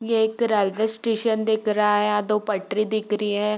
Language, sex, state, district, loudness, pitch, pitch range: Hindi, female, Bihar, Darbhanga, -22 LUFS, 215 Hz, 210-220 Hz